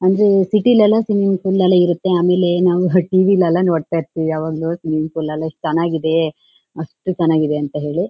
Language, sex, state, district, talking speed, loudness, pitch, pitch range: Kannada, female, Karnataka, Shimoga, 150 wpm, -16 LUFS, 175 Hz, 160-185 Hz